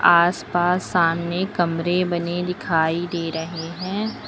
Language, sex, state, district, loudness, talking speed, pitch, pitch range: Hindi, female, Uttar Pradesh, Lucknow, -22 LUFS, 110 wpm, 175 Hz, 170-180 Hz